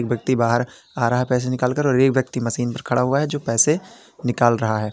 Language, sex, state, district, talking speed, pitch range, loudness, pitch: Hindi, male, Uttar Pradesh, Lalitpur, 255 wpm, 120-130 Hz, -20 LUFS, 125 Hz